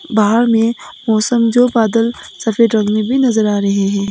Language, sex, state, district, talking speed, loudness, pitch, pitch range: Hindi, female, Nagaland, Kohima, 190 wpm, -14 LUFS, 225 Hz, 215-235 Hz